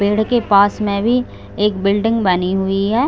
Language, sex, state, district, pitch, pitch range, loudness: Hindi, female, Chhattisgarh, Bilaspur, 205 Hz, 195-225 Hz, -16 LUFS